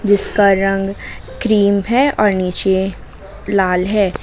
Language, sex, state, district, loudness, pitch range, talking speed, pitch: Hindi, female, Jharkhand, Ranchi, -15 LUFS, 190-205 Hz, 115 wpm, 195 Hz